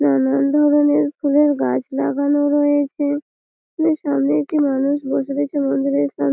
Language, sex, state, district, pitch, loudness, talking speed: Bengali, female, West Bengal, Malda, 285 Hz, -18 LUFS, 135 wpm